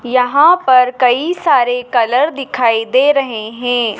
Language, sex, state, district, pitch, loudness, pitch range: Hindi, female, Madhya Pradesh, Dhar, 250 Hz, -13 LUFS, 240-275 Hz